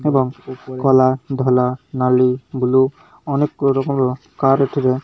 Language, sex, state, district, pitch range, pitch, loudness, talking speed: Odia, male, Odisha, Malkangiri, 130-135 Hz, 130 Hz, -17 LUFS, 130 wpm